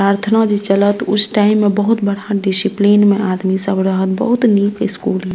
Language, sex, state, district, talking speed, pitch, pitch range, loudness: Maithili, female, Bihar, Purnia, 180 wpm, 205 Hz, 195-210 Hz, -14 LUFS